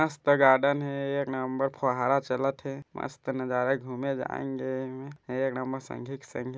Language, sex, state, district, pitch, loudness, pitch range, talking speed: Chhattisgarhi, male, Chhattisgarh, Bilaspur, 135 Hz, -29 LUFS, 130-140 Hz, 155 wpm